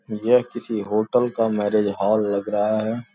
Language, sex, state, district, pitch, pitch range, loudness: Hindi, male, Uttar Pradesh, Gorakhpur, 110 Hz, 105-120 Hz, -21 LUFS